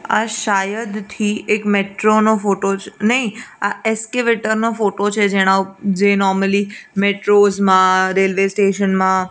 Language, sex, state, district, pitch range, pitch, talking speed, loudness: Gujarati, female, Gujarat, Gandhinagar, 195-215 Hz, 200 Hz, 130 wpm, -16 LUFS